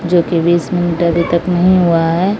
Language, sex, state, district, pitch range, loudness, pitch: Hindi, female, Odisha, Malkangiri, 170-180 Hz, -13 LUFS, 175 Hz